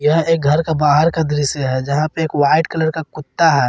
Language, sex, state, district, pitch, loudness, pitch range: Hindi, male, Jharkhand, Garhwa, 155 Hz, -16 LUFS, 145-160 Hz